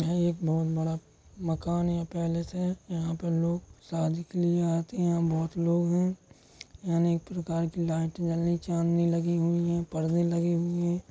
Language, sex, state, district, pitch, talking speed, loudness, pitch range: Hindi, male, Uttar Pradesh, Jalaun, 170 Hz, 185 wpm, -29 LUFS, 165-175 Hz